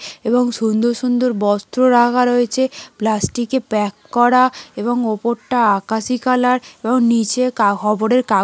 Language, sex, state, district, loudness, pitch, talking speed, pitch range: Bengali, female, West Bengal, North 24 Parganas, -17 LUFS, 240 Hz, 150 wpm, 220-250 Hz